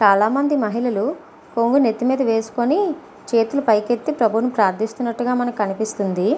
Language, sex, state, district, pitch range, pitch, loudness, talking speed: Telugu, female, Andhra Pradesh, Visakhapatnam, 215-250 Hz, 230 Hz, -20 LUFS, 140 wpm